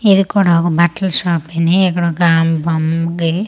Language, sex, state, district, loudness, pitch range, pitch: Telugu, female, Andhra Pradesh, Manyam, -14 LUFS, 165-185 Hz, 170 Hz